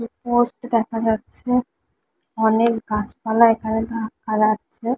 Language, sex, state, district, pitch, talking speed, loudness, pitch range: Bengali, female, West Bengal, Kolkata, 230 Hz, 110 wpm, -20 LUFS, 220-240 Hz